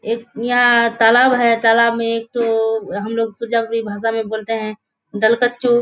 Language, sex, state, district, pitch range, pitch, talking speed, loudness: Hindi, female, Bihar, Kishanganj, 225-235 Hz, 230 Hz, 175 wpm, -16 LUFS